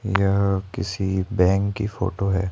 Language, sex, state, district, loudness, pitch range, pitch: Hindi, male, Rajasthan, Jaipur, -23 LUFS, 95-100 Hz, 95 Hz